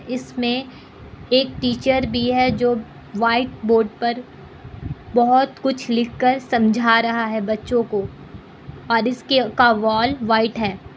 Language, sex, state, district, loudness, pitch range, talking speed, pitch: Hindi, female, Bihar, Kishanganj, -19 LUFS, 225-250 Hz, 125 wpm, 240 Hz